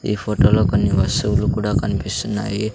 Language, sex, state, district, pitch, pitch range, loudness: Telugu, male, Andhra Pradesh, Sri Satya Sai, 105 Hz, 100-110 Hz, -19 LUFS